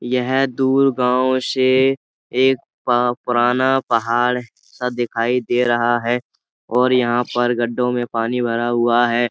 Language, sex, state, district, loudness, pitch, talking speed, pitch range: Hindi, male, Uttar Pradesh, Budaun, -18 LUFS, 125 Hz, 140 wpm, 120-130 Hz